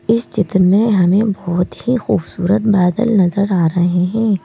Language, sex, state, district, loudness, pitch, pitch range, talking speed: Hindi, male, Madhya Pradesh, Bhopal, -15 LUFS, 195 Hz, 180-215 Hz, 160 wpm